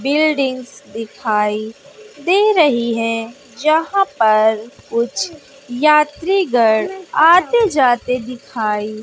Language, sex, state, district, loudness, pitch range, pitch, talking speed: Hindi, female, Bihar, West Champaran, -16 LUFS, 225-310 Hz, 255 Hz, 80 wpm